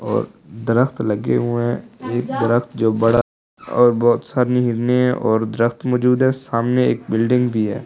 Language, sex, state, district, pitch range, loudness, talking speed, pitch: Hindi, male, Delhi, New Delhi, 115-125 Hz, -18 LUFS, 160 wpm, 120 Hz